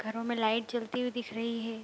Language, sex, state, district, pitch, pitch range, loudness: Hindi, female, Bihar, Kishanganj, 230 Hz, 225-240 Hz, -33 LUFS